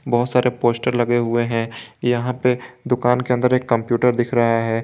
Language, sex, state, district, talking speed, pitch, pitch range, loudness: Hindi, male, Jharkhand, Garhwa, 200 wpm, 120 Hz, 120-125 Hz, -19 LUFS